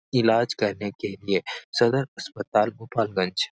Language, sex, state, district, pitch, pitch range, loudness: Hindi, male, Bihar, Supaul, 115 Hz, 105-120 Hz, -25 LUFS